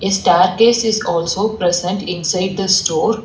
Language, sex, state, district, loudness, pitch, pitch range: English, female, Telangana, Hyderabad, -15 LUFS, 190 Hz, 180-215 Hz